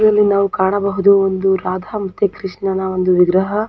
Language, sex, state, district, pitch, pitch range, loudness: Kannada, female, Karnataka, Dakshina Kannada, 195 Hz, 185-200 Hz, -16 LUFS